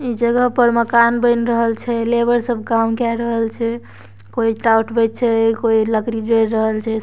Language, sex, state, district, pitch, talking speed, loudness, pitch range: Maithili, female, Bihar, Darbhanga, 230 Hz, 190 wpm, -17 LUFS, 225-235 Hz